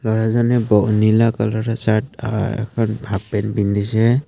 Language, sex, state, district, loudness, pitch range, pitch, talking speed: Assamese, male, Assam, Kamrup Metropolitan, -18 LUFS, 105-115 Hz, 110 Hz, 110 wpm